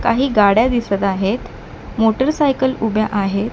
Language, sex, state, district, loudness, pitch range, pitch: Marathi, female, Maharashtra, Mumbai Suburban, -17 LUFS, 200-255 Hz, 225 Hz